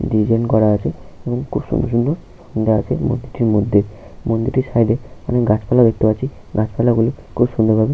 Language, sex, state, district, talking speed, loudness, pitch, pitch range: Bengali, male, West Bengal, Paschim Medinipur, 165 wpm, -18 LUFS, 115 Hz, 110-125 Hz